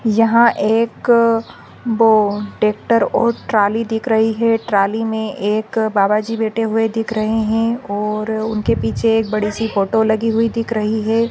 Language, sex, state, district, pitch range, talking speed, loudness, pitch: Hindi, female, Rajasthan, Nagaur, 215-225 Hz, 160 wpm, -17 LUFS, 220 Hz